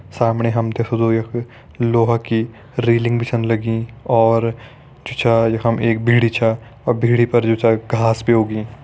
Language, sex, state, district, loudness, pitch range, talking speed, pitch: Hindi, male, Uttarakhand, Tehri Garhwal, -17 LUFS, 115-120 Hz, 170 wpm, 115 Hz